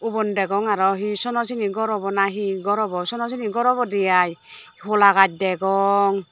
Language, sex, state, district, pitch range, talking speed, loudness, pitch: Chakma, female, Tripura, Dhalai, 195-220 Hz, 180 wpm, -20 LUFS, 200 Hz